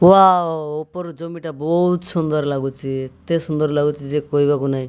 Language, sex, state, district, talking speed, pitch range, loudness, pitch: Odia, male, Odisha, Malkangiri, 145 wpm, 145-170 Hz, -19 LUFS, 155 Hz